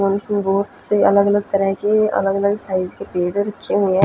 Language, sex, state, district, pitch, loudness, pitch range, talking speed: Hindi, female, Punjab, Fazilka, 200 Hz, -18 LUFS, 195-205 Hz, 205 wpm